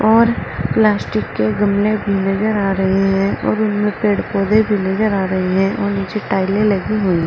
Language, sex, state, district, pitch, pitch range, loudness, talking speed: Hindi, female, Uttar Pradesh, Saharanpur, 195 Hz, 190-210 Hz, -16 LUFS, 190 wpm